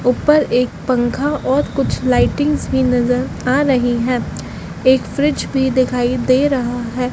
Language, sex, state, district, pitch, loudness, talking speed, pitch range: Hindi, female, Madhya Pradesh, Dhar, 255 Hz, -16 LUFS, 150 wpm, 245-275 Hz